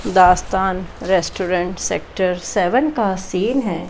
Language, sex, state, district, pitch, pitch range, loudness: Hindi, female, Chandigarh, Chandigarh, 190 Hz, 180-200 Hz, -18 LUFS